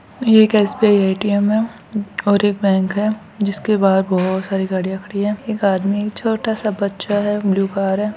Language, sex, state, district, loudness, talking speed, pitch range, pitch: Hindi, female, Rajasthan, Churu, -17 LUFS, 215 wpm, 195-215 Hz, 205 Hz